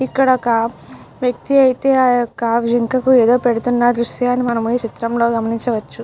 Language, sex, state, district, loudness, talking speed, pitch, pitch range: Telugu, female, Andhra Pradesh, Chittoor, -16 LUFS, 140 wpm, 240 Hz, 230-255 Hz